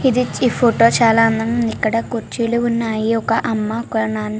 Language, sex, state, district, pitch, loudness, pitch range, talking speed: Telugu, female, Telangana, Karimnagar, 230 Hz, -17 LUFS, 220-235 Hz, 150 wpm